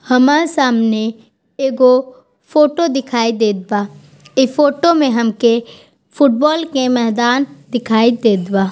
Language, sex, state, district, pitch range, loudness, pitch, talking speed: Bhojpuri, female, Bihar, East Champaran, 225-275 Hz, -14 LUFS, 245 Hz, 115 wpm